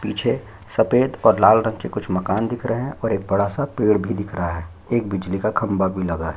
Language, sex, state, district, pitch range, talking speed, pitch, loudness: Hindi, male, Chhattisgarh, Korba, 95-115 Hz, 255 wpm, 105 Hz, -21 LUFS